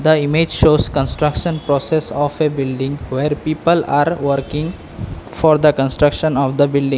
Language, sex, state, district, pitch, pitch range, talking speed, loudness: English, male, Assam, Kamrup Metropolitan, 150 Hz, 140-155 Hz, 155 wpm, -16 LUFS